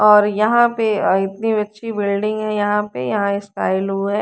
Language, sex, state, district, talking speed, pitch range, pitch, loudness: Hindi, female, Haryana, Rohtak, 170 wpm, 200-215 Hz, 210 Hz, -18 LUFS